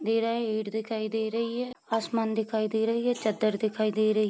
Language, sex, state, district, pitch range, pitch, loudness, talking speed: Hindi, female, Bihar, Sitamarhi, 215-230 Hz, 220 Hz, -29 LUFS, 250 wpm